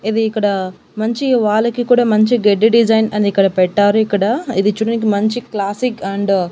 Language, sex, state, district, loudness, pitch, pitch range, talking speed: Telugu, female, Andhra Pradesh, Annamaya, -15 LUFS, 215 Hz, 200-230 Hz, 175 wpm